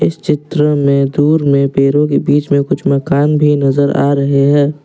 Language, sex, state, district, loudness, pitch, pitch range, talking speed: Hindi, male, Assam, Kamrup Metropolitan, -12 LUFS, 140 Hz, 140-150 Hz, 185 wpm